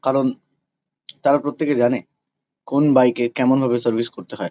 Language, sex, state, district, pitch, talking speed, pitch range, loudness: Bengali, male, West Bengal, Kolkata, 130 Hz, 160 wpm, 120-140 Hz, -19 LUFS